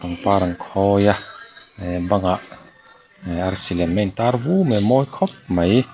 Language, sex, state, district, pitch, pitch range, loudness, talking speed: Mizo, male, Mizoram, Aizawl, 100 Hz, 90-120 Hz, -20 LUFS, 180 wpm